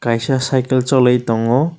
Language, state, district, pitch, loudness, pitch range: Kokborok, Tripura, West Tripura, 130 Hz, -15 LUFS, 120-135 Hz